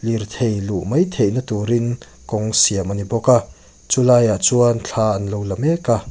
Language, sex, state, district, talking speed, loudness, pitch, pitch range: Mizo, male, Mizoram, Aizawl, 215 wpm, -18 LUFS, 115 Hz, 105-125 Hz